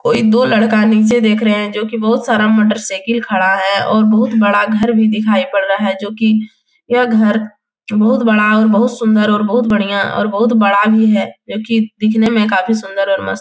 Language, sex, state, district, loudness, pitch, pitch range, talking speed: Hindi, female, Bihar, Jahanabad, -13 LUFS, 215 Hz, 205-225 Hz, 225 wpm